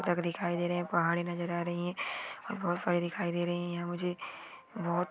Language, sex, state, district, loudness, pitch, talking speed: Marwari, female, Rajasthan, Churu, -34 LUFS, 175 Hz, 235 wpm